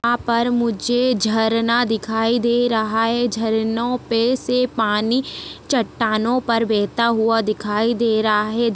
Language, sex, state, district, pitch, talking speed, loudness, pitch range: Hindi, female, Chhattisgarh, Jashpur, 230 Hz, 135 wpm, -19 LUFS, 220-240 Hz